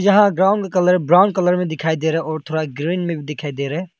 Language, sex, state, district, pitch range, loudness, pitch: Hindi, male, Arunachal Pradesh, Longding, 155-185 Hz, -18 LUFS, 170 Hz